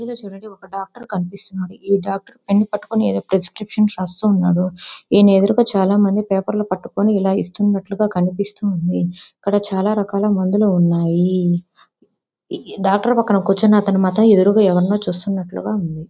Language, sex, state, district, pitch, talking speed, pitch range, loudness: Telugu, female, Andhra Pradesh, Visakhapatnam, 195 Hz, 125 wpm, 185-210 Hz, -17 LUFS